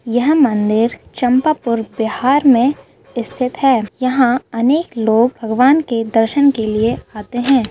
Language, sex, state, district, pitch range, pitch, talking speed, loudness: Hindi, female, Bihar, Bhagalpur, 225-265 Hz, 245 Hz, 130 wpm, -15 LUFS